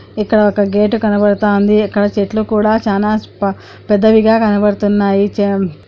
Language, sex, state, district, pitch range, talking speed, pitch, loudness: Telugu, male, Andhra Pradesh, Anantapur, 205-215 Hz, 110 wpm, 205 Hz, -13 LUFS